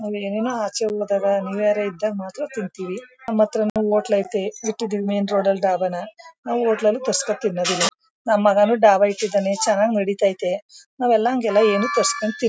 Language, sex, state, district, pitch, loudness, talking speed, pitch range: Kannada, female, Karnataka, Mysore, 210 Hz, -20 LUFS, 135 wpm, 200-225 Hz